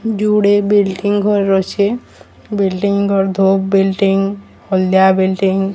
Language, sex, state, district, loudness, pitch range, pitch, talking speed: Odia, female, Odisha, Sambalpur, -14 LUFS, 195-205 Hz, 195 Hz, 95 wpm